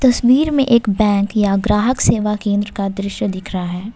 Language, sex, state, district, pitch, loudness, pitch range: Hindi, female, Jharkhand, Ranchi, 210 Hz, -16 LUFS, 200-235 Hz